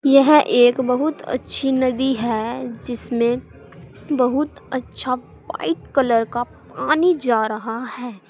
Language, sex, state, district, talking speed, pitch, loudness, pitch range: Hindi, female, Uttar Pradesh, Saharanpur, 115 wpm, 250 Hz, -20 LUFS, 235-270 Hz